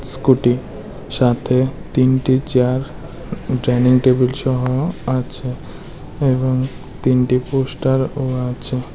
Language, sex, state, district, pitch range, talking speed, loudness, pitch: Bengali, male, Tripura, West Tripura, 125-135 Hz, 75 wpm, -18 LUFS, 130 Hz